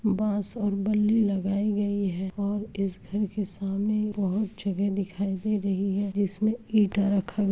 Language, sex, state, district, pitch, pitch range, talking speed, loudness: Hindi, female, Uttar Pradesh, Muzaffarnagar, 200 Hz, 195-210 Hz, 165 wpm, -27 LUFS